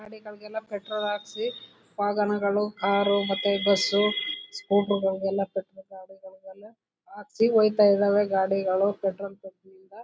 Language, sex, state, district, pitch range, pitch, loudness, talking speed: Kannada, female, Karnataka, Chamarajanagar, 195-210 Hz, 200 Hz, -25 LUFS, 110 wpm